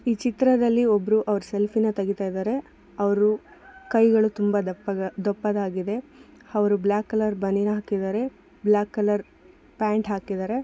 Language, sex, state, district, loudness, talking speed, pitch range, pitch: Kannada, female, Karnataka, Bellary, -24 LUFS, 120 wpm, 200-230 Hz, 210 Hz